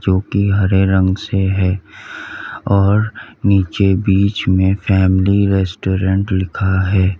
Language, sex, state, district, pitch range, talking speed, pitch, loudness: Hindi, male, Uttar Pradesh, Lalitpur, 95-100 Hz, 115 wpm, 95 Hz, -15 LUFS